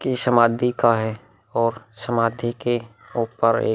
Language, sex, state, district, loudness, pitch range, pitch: Hindi, male, Bihar, Vaishali, -22 LUFS, 115-120 Hz, 115 Hz